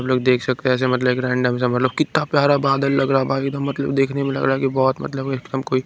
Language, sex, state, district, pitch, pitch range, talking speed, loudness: Hindi, male, Bihar, Kaimur, 135 Hz, 130-140 Hz, 285 wpm, -19 LUFS